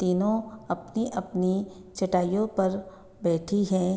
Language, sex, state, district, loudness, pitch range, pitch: Hindi, female, Bihar, Gopalganj, -28 LUFS, 185-205 Hz, 190 Hz